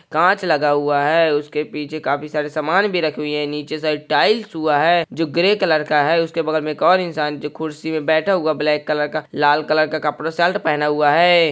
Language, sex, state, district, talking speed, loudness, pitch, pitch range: Hindi, male, Bihar, Araria, 235 wpm, -18 LUFS, 155 Hz, 150-165 Hz